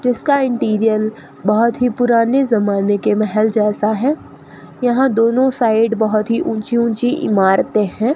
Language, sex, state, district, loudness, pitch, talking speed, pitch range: Hindi, female, Rajasthan, Bikaner, -16 LUFS, 225 Hz, 140 wpm, 215-245 Hz